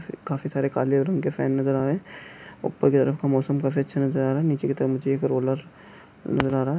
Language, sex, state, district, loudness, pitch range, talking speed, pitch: Hindi, male, Chhattisgarh, Jashpur, -24 LUFS, 135-140 Hz, 275 wpm, 135 Hz